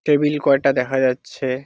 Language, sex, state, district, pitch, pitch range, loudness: Bengali, male, West Bengal, Jalpaiguri, 135 Hz, 130-145 Hz, -19 LUFS